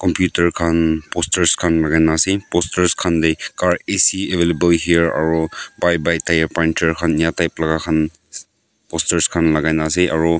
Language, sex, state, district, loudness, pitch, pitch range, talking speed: Nagamese, male, Nagaland, Kohima, -17 LUFS, 85 Hz, 80-85 Hz, 160 wpm